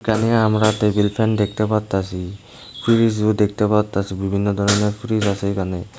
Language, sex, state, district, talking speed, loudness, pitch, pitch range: Bengali, male, Tripura, Unakoti, 140 wpm, -19 LUFS, 105 Hz, 100-110 Hz